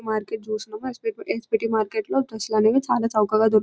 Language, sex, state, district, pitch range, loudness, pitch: Telugu, female, Telangana, Nalgonda, 215-230 Hz, -23 LUFS, 220 Hz